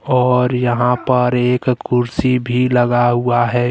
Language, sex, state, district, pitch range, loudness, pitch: Hindi, male, Jharkhand, Deoghar, 120-125 Hz, -15 LUFS, 125 Hz